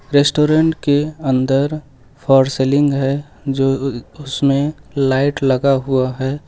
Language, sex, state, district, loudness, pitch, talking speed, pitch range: Hindi, male, Uttar Pradesh, Lucknow, -16 LUFS, 135 Hz, 120 wpm, 135-145 Hz